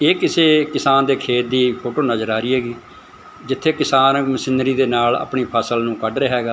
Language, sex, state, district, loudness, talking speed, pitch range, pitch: Punjabi, male, Punjab, Fazilka, -17 LUFS, 200 wpm, 120-135 Hz, 130 Hz